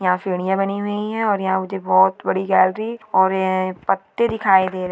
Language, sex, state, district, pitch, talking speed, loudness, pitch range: Hindi, female, Maharashtra, Dhule, 190 Hz, 205 wpm, -19 LUFS, 185-205 Hz